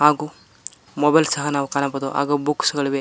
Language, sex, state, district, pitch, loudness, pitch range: Kannada, male, Karnataka, Koppal, 145 Hz, -20 LUFS, 140-150 Hz